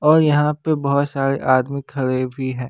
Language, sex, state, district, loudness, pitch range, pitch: Hindi, male, Bihar, West Champaran, -19 LUFS, 130-150 Hz, 140 Hz